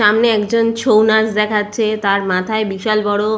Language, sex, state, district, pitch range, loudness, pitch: Bengali, female, West Bengal, Purulia, 210-220 Hz, -15 LUFS, 215 Hz